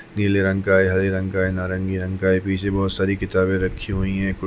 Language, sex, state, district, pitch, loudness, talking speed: Hindi, male, Chhattisgarh, Rajnandgaon, 95 Hz, -21 LUFS, 215 wpm